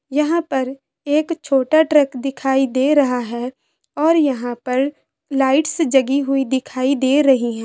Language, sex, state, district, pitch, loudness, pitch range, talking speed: Hindi, female, Bihar, Vaishali, 270 Hz, -18 LUFS, 260-295 Hz, 150 wpm